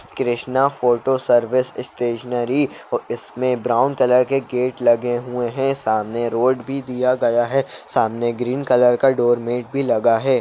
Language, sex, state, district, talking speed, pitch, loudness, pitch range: Kumaoni, male, Uttarakhand, Uttarkashi, 155 wpm, 125 Hz, -19 LUFS, 120-130 Hz